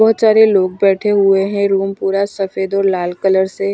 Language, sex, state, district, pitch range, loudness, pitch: Hindi, female, Punjab, Pathankot, 195-200 Hz, -14 LUFS, 195 Hz